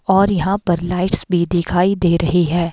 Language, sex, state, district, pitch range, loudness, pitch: Hindi, female, Himachal Pradesh, Shimla, 175-190 Hz, -17 LUFS, 180 Hz